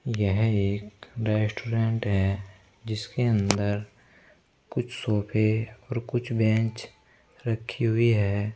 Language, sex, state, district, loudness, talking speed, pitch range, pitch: Hindi, male, Uttar Pradesh, Saharanpur, -27 LUFS, 100 wpm, 105-115 Hz, 110 Hz